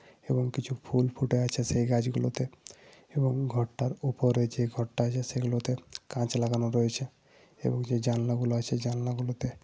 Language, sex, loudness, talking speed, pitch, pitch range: Bengali, male, -30 LUFS, 145 wpm, 125 Hz, 120-125 Hz